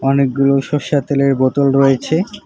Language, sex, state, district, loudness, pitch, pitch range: Bengali, male, West Bengal, Alipurduar, -15 LUFS, 140 Hz, 135-145 Hz